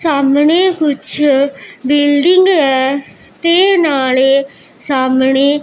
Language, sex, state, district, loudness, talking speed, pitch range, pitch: Punjabi, female, Punjab, Pathankot, -12 LUFS, 75 wpm, 270-320 Hz, 285 Hz